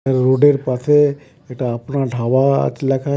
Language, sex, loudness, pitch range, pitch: Bengali, male, -16 LUFS, 130-140 Hz, 135 Hz